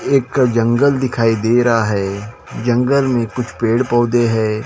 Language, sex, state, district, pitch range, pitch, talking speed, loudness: Hindi, male, Maharashtra, Gondia, 110-125 Hz, 120 Hz, 155 wpm, -16 LUFS